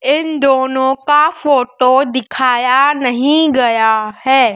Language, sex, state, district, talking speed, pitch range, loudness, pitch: Hindi, male, Madhya Pradesh, Dhar, 105 wpm, 255-290 Hz, -13 LUFS, 265 Hz